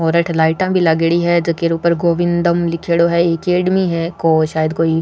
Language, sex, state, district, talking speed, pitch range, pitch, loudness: Rajasthani, female, Rajasthan, Nagaur, 190 wpm, 165-170 Hz, 170 Hz, -15 LUFS